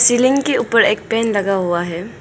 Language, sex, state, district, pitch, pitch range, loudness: Hindi, female, Arunachal Pradesh, Papum Pare, 220 Hz, 195-240 Hz, -16 LUFS